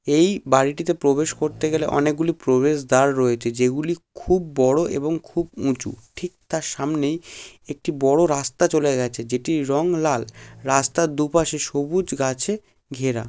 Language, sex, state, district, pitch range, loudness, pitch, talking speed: Bengali, male, West Bengal, Dakshin Dinajpur, 130-160 Hz, -21 LUFS, 145 Hz, 120 wpm